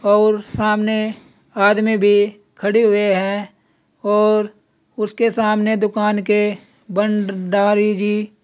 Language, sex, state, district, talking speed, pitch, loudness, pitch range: Hindi, male, Uttar Pradesh, Saharanpur, 105 wpm, 210 Hz, -17 LUFS, 205-215 Hz